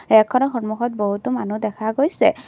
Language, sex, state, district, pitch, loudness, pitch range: Assamese, female, Assam, Kamrup Metropolitan, 220 Hz, -20 LUFS, 215-255 Hz